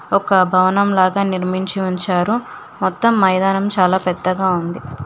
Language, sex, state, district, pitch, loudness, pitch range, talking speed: Telugu, female, Telangana, Hyderabad, 185 Hz, -16 LUFS, 185-195 Hz, 120 wpm